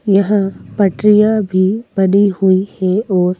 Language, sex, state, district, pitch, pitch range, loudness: Hindi, female, Madhya Pradesh, Bhopal, 195 Hz, 190-210 Hz, -14 LUFS